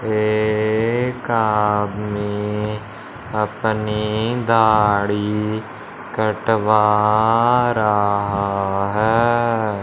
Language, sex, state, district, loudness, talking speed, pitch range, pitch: Hindi, male, Punjab, Fazilka, -18 LUFS, 45 wpm, 105-110 Hz, 110 Hz